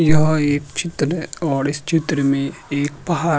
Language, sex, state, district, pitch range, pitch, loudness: Hindi, male, Uttarakhand, Tehri Garhwal, 145-165 Hz, 150 Hz, -20 LUFS